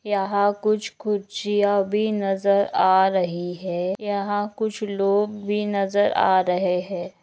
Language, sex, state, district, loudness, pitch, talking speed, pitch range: Hindi, female, Maharashtra, Nagpur, -22 LUFS, 200 Hz, 135 wpm, 190-205 Hz